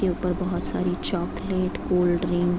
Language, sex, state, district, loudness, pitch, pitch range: Hindi, female, Bihar, Sitamarhi, -25 LUFS, 180 Hz, 175-185 Hz